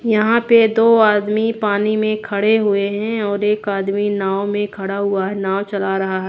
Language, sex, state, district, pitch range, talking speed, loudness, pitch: Hindi, female, Haryana, Jhajjar, 200-215 Hz, 190 wpm, -17 LUFS, 205 Hz